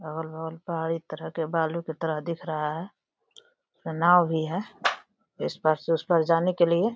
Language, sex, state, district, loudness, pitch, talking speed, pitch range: Hindi, female, Uttar Pradesh, Deoria, -27 LUFS, 165 Hz, 190 wpm, 160-175 Hz